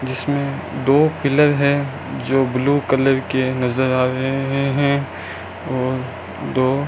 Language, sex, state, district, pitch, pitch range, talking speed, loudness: Hindi, male, Rajasthan, Bikaner, 135 Hz, 130-140 Hz, 130 wpm, -19 LUFS